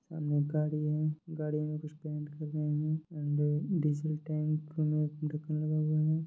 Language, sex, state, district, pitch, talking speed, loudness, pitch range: Hindi, male, Bihar, Jahanabad, 155 Hz, 170 wpm, -33 LUFS, 150-155 Hz